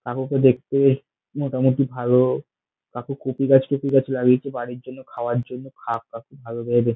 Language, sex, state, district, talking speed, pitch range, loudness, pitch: Bengali, male, West Bengal, Dakshin Dinajpur, 165 wpm, 120-135 Hz, -21 LUFS, 130 Hz